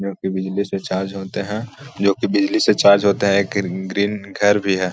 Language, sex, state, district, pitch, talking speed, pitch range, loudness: Hindi, male, Bihar, Jahanabad, 100 Hz, 245 wpm, 95-105 Hz, -19 LUFS